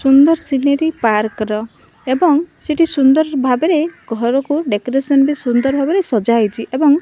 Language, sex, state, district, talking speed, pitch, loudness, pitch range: Odia, female, Odisha, Malkangiri, 145 wpm, 275 Hz, -15 LUFS, 240-305 Hz